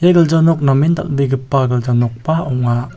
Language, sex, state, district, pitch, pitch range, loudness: Garo, male, Meghalaya, South Garo Hills, 135 Hz, 125-160 Hz, -15 LUFS